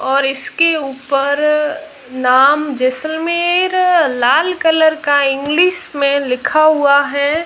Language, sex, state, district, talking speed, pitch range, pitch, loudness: Hindi, female, Rajasthan, Jaisalmer, 105 wpm, 275-320 Hz, 295 Hz, -14 LUFS